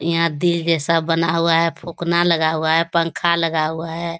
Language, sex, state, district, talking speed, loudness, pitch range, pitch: Hindi, female, Bihar, Lakhisarai, 215 wpm, -18 LUFS, 165-170 Hz, 165 Hz